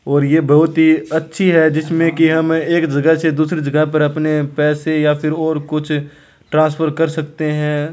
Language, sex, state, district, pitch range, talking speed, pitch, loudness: Hindi, male, Rajasthan, Churu, 150-160 Hz, 190 wpm, 155 Hz, -15 LUFS